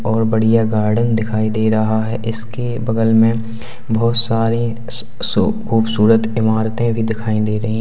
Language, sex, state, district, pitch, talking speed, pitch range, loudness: Hindi, male, Uttar Pradesh, Lalitpur, 115 Hz, 145 wpm, 110-115 Hz, -17 LUFS